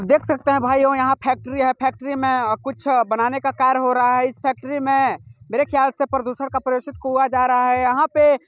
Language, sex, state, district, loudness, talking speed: Hindi, male, Chhattisgarh, Bilaspur, -19 LUFS, 235 wpm